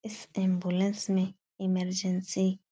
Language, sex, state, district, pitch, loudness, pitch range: Hindi, female, Uttar Pradesh, Etah, 190 Hz, -30 LUFS, 185-195 Hz